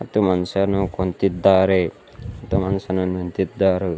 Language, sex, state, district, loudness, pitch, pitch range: Kannada, male, Karnataka, Bidar, -20 LUFS, 95 Hz, 90-95 Hz